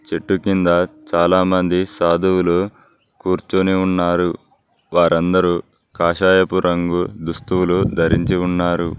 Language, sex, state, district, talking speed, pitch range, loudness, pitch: Telugu, male, Telangana, Mahabubabad, 80 wpm, 85-95 Hz, -17 LUFS, 90 Hz